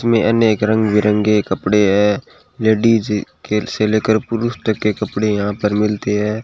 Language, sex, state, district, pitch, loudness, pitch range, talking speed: Hindi, male, Rajasthan, Bikaner, 105 Hz, -16 LUFS, 105-110 Hz, 170 wpm